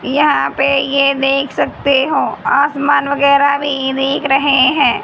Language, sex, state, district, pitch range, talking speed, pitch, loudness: Hindi, female, Haryana, Rohtak, 270-285 Hz, 145 wpm, 280 Hz, -13 LUFS